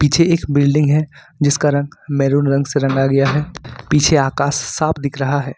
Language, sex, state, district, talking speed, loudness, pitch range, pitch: Hindi, male, Jharkhand, Ranchi, 195 wpm, -16 LUFS, 140-150 Hz, 145 Hz